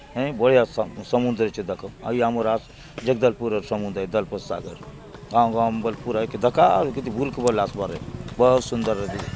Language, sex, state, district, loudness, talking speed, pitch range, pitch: Halbi, male, Chhattisgarh, Bastar, -23 LUFS, 165 wpm, 110-120 Hz, 115 Hz